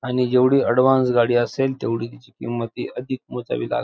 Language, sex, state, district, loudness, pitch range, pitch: Marathi, male, Maharashtra, Dhule, -21 LUFS, 120-130 Hz, 125 Hz